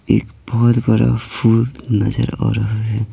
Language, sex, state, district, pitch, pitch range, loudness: Hindi, male, Bihar, Patna, 115 Hz, 110-120 Hz, -17 LUFS